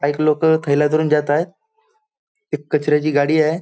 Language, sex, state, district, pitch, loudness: Marathi, male, Maharashtra, Chandrapur, 155 Hz, -17 LUFS